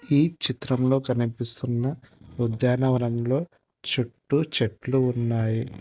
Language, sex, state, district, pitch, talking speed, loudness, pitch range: Telugu, male, Telangana, Hyderabad, 125 Hz, 70 wpm, -23 LUFS, 120-135 Hz